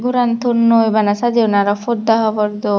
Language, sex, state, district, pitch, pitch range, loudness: Chakma, female, Tripura, Dhalai, 225 Hz, 210-235 Hz, -15 LUFS